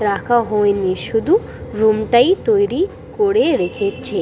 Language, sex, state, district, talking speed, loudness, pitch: Bengali, female, West Bengal, Purulia, 115 wpm, -17 LUFS, 240 Hz